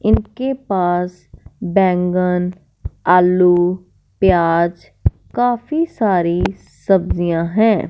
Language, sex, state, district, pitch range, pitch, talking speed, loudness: Hindi, female, Punjab, Fazilka, 175-210 Hz, 180 Hz, 70 wpm, -17 LUFS